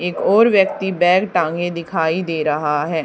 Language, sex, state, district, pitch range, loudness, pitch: Hindi, female, Haryana, Charkhi Dadri, 160-190 Hz, -17 LUFS, 175 Hz